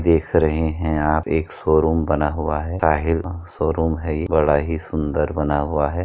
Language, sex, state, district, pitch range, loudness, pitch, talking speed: Hindi, male, Uttar Pradesh, Jyotiba Phule Nagar, 75-80 Hz, -20 LUFS, 80 Hz, 190 wpm